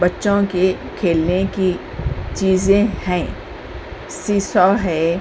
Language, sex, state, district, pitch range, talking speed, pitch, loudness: Hindi, female, Uttar Pradesh, Hamirpur, 180-200 Hz, 105 wpm, 190 Hz, -18 LUFS